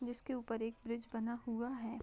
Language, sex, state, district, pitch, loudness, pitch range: Hindi, female, Bihar, Madhepura, 235 Hz, -42 LUFS, 230-245 Hz